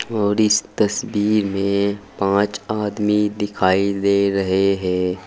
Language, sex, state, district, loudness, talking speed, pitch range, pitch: Hindi, male, Uttar Pradesh, Saharanpur, -19 LUFS, 115 wpm, 100-105 Hz, 100 Hz